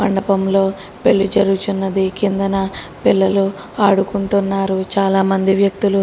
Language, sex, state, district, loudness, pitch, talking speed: Telugu, female, Telangana, Karimnagar, -16 LUFS, 195 Hz, 90 wpm